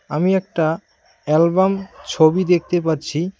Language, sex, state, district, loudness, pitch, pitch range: Bengali, male, West Bengal, Cooch Behar, -18 LUFS, 170 Hz, 160-185 Hz